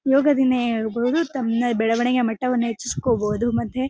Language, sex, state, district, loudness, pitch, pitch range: Kannada, female, Karnataka, Bellary, -21 LUFS, 240 Hz, 230-255 Hz